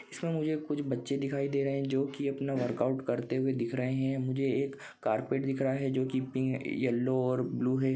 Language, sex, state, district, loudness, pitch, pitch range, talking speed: Hindi, male, Maharashtra, Nagpur, -32 LUFS, 135 Hz, 130-140 Hz, 225 wpm